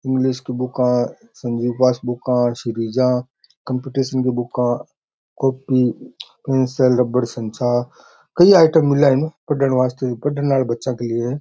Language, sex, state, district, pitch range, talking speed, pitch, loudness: Rajasthani, male, Rajasthan, Churu, 120-135 Hz, 130 wpm, 125 Hz, -18 LUFS